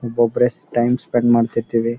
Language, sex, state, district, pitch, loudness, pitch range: Kannada, male, Karnataka, Bellary, 120 Hz, -18 LUFS, 115-120 Hz